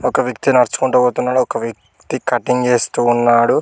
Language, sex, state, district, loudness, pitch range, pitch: Telugu, male, Telangana, Mahabubabad, -16 LUFS, 115-125 Hz, 120 Hz